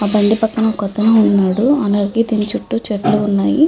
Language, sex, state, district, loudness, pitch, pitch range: Telugu, female, Andhra Pradesh, Chittoor, -15 LUFS, 215 Hz, 205-225 Hz